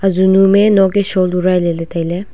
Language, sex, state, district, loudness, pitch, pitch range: Wancho, female, Arunachal Pradesh, Longding, -13 LUFS, 190 Hz, 180-195 Hz